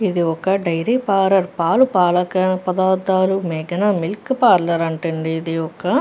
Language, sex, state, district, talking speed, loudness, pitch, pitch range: Telugu, female, Andhra Pradesh, Guntur, 110 wpm, -18 LUFS, 185 Hz, 165-195 Hz